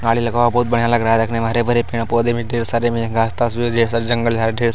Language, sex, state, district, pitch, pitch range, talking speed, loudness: Hindi, male, Bihar, Begusarai, 115 Hz, 115-120 Hz, 330 wpm, -17 LUFS